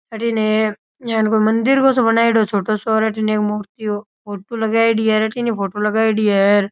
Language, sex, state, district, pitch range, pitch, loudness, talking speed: Rajasthani, male, Rajasthan, Nagaur, 210-225 Hz, 220 Hz, -17 LUFS, 205 wpm